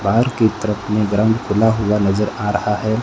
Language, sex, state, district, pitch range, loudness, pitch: Hindi, male, Rajasthan, Bikaner, 105-110 Hz, -17 LUFS, 105 Hz